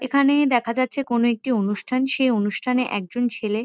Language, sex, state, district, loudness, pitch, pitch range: Bengali, female, West Bengal, Kolkata, -21 LUFS, 245 Hz, 225-260 Hz